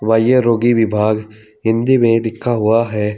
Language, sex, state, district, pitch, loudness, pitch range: Hindi, male, Uttar Pradesh, Saharanpur, 115 Hz, -15 LUFS, 110-115 Hz